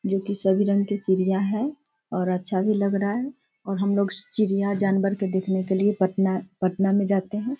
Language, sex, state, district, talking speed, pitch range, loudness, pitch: Hindi, female, Bihar, Sitamarhi, 205 wpm, 190-205 Hz, -24 LUFS, 200 Hz